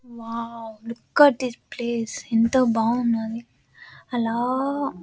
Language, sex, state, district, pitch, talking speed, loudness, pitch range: Telugu, female, Andhra Pradesh, Anantapur, 235 Hz, 95 wpm, -23 LUFS, 230-255 Hz